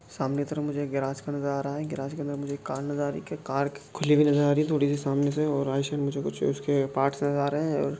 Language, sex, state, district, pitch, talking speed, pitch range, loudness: Hindi, male, Chhattisgarh, Balrampur, 140 Hz, 315 wpm, 140-145 Hz, -28 LUFS